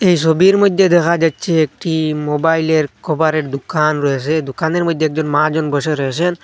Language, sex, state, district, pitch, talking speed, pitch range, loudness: Bengali, male, Assam, Hailakandi, 160 Hz, 150 wpm, 150-170 Hz, -15 LUFS